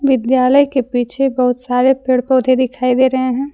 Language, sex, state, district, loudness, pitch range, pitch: Hindi, female, Jharkhand, Deoghar, -14 LUFS, 250-265 Hz, 255 Hz